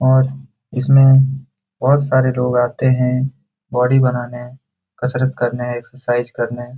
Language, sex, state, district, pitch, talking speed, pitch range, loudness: Hindi, male, Bihar, Jamui, 125 Hz, 115 wpm, 120-135 Hz, -16 LUFS